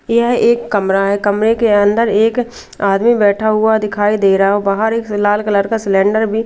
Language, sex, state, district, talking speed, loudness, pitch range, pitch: Hindi, female, Bihar, Katihar, 205 wpm, -13 LUFS, 200-225 Hz, 210 Hz